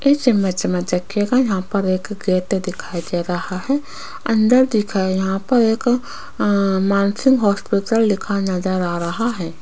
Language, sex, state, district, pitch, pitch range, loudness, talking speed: Hindi, female, Rajasthan, Jaipur, 200 Hz, 185-225 Hz, -19 LUFS, 155 wpm